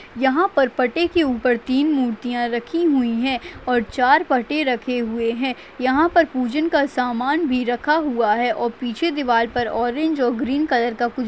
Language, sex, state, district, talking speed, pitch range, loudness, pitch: Hindi, female, Chhattisgarh, Bastar, 185 wpm, 240-295 Hz, -20 LUFS, 255 Hz